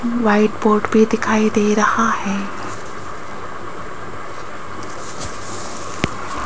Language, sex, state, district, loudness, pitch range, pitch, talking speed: Hindi, female, Rajasthan, Jaipur, -18 LUFS, 215-220 Hz, 215 Hz, 65 wpm